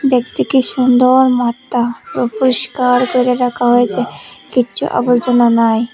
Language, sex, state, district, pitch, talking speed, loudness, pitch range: Bengali, female, Tripura, Unakoti, 250 Hz, 120 wpm, -14 LUFS, 240-255 Hz